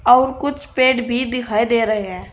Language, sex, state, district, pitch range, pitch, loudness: Hindi, female, Uttar Pradesh, Saharanpur, 225-255 Hz, 245 Hz, -18 LUFS